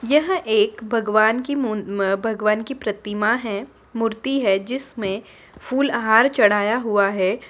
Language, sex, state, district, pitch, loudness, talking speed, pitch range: Hindi, female, Bihar, Muzaffarpur, 225 Hz, -20 LUFS, 160 wpm, 210-260 Hz